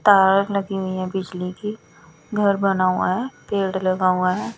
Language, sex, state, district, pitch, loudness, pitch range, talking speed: Hindi, female, Bihar, West Champaran, 190 Hz, -21 LUFS, 185-200 Hz, 185 wpm